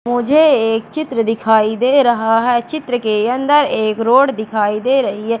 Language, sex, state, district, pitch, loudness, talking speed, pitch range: Hindi, female, Madhya Pradesh, Katni, 235 Hz, -14 LUFS, 175 wpm, 220-265 Hz